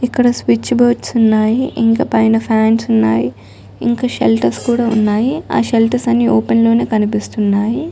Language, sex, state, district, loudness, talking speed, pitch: Telugu, female, Telangana, Nalgonda, -14 LUFS, 135 wpm, 225 Hz